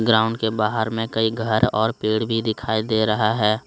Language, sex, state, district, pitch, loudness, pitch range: Hindi, male, Jharkhand, Deoghar, 110 Hz, -21 LUFS, 110-115 Hz